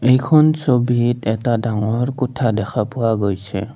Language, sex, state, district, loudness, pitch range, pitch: Assamese, male, Assam, Kamrup Metropolitan, -18 LUFS, 110-130 Hz, 120 Hz